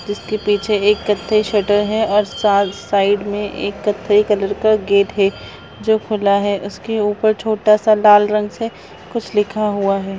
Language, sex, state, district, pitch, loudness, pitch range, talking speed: Hindi, female, Bihar, Purnia, 210 Hz, -16 LUFS, 200-215 Hz, 175 wpm